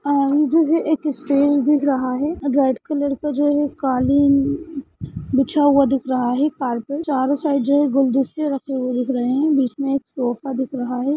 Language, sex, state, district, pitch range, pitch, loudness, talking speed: Hindi, female, Rajasthan, Churu, 265-290 Hz, 280 Hz, -19 LUFS, 160 wpm